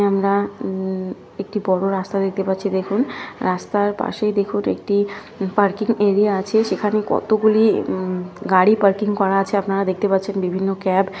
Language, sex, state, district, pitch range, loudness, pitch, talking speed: Bengali, female, West Bengal, North 24 Parganas, 190-205 Hz, -19 LUFS, 200 Hz, 155 wpm